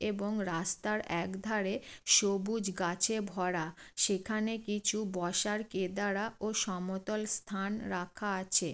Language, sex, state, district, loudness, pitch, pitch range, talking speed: Bengali, female, West Bengal, Jalpaiguri, -33 LUFS, 200 Hz, 185-215 Hz, 110 wpm